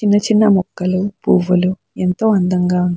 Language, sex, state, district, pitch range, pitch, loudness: Telugu, female, Andhra Pradesh, Chittoor, 180-205 Hz, 185 Hz, -15 LUFS